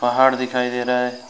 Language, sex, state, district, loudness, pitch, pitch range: Hindi, male, West Bengal, Alipurduar, -20 LUFS, 125 Hz, 125-130 Hz